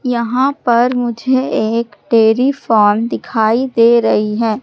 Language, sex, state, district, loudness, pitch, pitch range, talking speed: Hindi, female, Madhya Pradesh, Katni, -14 LUFS, 235 Hz, 220-255 Hz, 130 wpm